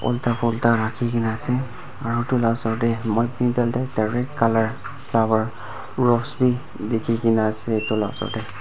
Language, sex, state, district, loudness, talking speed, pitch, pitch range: Nagamese, male, Nagaland, Dimapur, -22 LUFS, 130 wpm, 115 Hz, 110-120 Hz